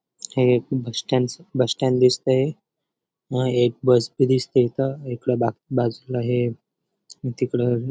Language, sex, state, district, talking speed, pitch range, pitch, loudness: Marathi, male, Maharashtra, Dhule, 145 wpm, 120-130 Hz, 125 Hz, -22 LUFS